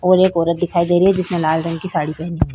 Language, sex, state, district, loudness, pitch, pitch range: Hindi, female, Goa, North and South Goa, -17 LUFS, 170 Hz, 165-180 Hz